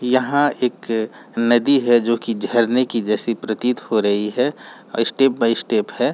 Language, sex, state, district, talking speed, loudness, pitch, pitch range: Hindi, male, Jharkhand, Jamtara, 165 wpm, -18 LUFS, 115 Hz, 115-125 Hz